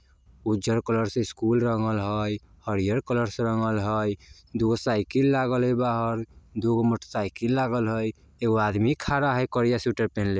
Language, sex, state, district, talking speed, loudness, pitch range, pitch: Bajjika, male, Bihar, Vaishali, 165 wpm, -26 LUFS, 105-120 Hz, 115 Hz